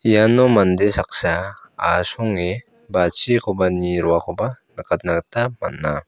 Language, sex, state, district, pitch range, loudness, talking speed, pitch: Garo, male, Meghalaya, South Garo Hills, 90-115 Hz, -19 LUFS, 100 wpm, 100 Hz